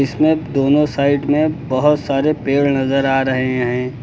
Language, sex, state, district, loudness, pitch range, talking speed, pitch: Hindi, male, Uttar Pradesh, Lucknow, -16 LUFS, 135-150 Hz, 165 wpm, 140 Hz